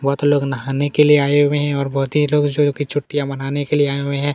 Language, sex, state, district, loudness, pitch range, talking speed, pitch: Hindi, male, Chhattisgarh, Kabirdham, -17 LUFS, 140-145 Hz, 305 wpm, 145 Hz